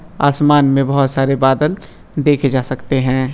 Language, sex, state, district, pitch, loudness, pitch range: Hindi, male, Chhattisgarh, Balrampur, 135 Hz, -15 LUFS, 135-145 Hz